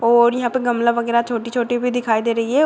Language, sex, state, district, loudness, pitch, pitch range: Hindi, female, Uttar Pradesh, Deoria, -18 LUFS, 235 Hz, 235-245 Hz